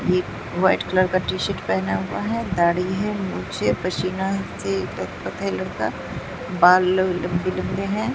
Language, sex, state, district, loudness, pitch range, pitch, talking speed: Hindi, female, Bihar, Katihar, -22 LUFS, 135-190 Hz, 180 Hz, 160 wpm